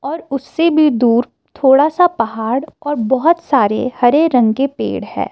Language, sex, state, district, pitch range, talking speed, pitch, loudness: Hindi, female, Himachal Pradesh, Shimla, 240-300 Hz, 170 wpm, 275 Hz, -14 LUFS